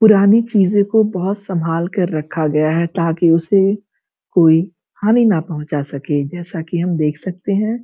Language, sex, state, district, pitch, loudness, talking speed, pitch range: Hindi, female, Uttar Pradesh, Gorakhpur, 175 Hz, -16 LUFS, 170 wpm, 160-200 Hz